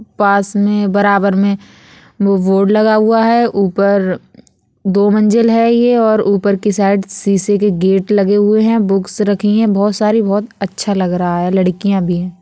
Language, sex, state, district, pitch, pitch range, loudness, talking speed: Bundeli, female, Uttar Pradesh, Budaun, 200 Hz, 195-215 Hz, -13 LUFS, 180 wpm